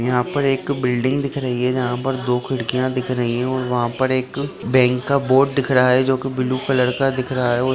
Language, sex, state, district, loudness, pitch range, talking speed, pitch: Hindi, male, Bihar, Jahanabad, -19 LUFS, 125-135 Hz, 265 wpm, 130 Hz